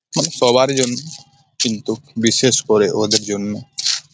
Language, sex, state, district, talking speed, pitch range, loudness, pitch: Bengali, male, West Bengal, Malda, 130 wpm, 110-135 Hz, -17 LUFS, 125 Hz